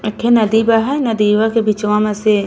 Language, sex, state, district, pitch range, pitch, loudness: Bhojpuri, female, Uttar Pradesh, Ghazipur, 210-225 Hz, 220 Hz, -14 LUFS